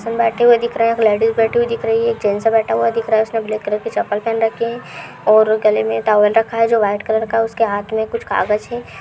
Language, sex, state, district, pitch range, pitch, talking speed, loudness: Hindi, female, Uttar Pradesh, Hamirpur, 215-230 Hz, 225 Hz, 295 wpm, -16 LUFS